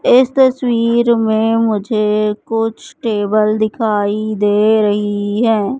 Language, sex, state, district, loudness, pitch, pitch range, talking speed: Hindi, male, Madhya Pradesh, Katni, -15 LUFS, 220 Hz, 210-230 Hz, 105 wpm